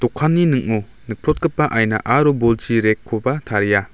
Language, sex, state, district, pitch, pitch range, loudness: Garo, male, Meghalaya, West Garo Hills, 115 Hz, 110-150 Hz, -18 LUFS